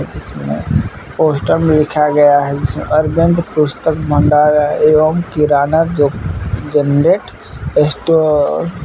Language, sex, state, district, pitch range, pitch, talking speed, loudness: Hindi, male, Jharkhand, Palamu, 140-155 Hz, 150 Hz, 100 wpm, -13 LUFS